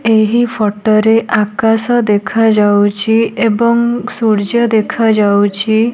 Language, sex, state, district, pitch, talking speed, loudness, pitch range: Odia, female, Odisha, Nuapada, 220 Hz, 80 wpm, -12 LUFS, 210-230 Hz